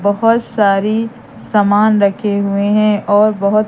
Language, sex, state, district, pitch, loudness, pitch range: Hindi, female, Madhya Pradesh, Katni, 210 Hz, -13 LUFS, 200-215 Hz